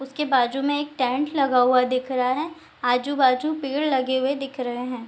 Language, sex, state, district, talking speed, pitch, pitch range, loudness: Hindi, female, Bihar, Sitamarhi, 215 wpm, 265 Hz, 250-285 Hz, -23 LUFS